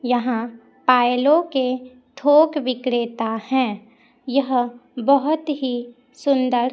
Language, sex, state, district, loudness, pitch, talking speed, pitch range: Hindi, female, Chhattisgarh, Raipur, -20 LUFS, 255 Hz, 90 wpm, 245-275 Hz